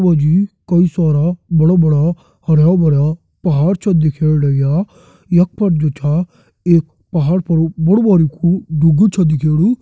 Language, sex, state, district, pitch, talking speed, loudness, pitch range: Hindi, male, Uttarakhand, Tehri Garhwal, 165 Hz, 155 wpm, -14 LUFS, 155-180 Hz